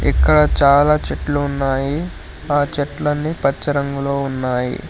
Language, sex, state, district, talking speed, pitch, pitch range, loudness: Telugu, male, Telangana, Hyderabad, 110 wpm, 140 Hz, 135-145 Hz, -18 LUFS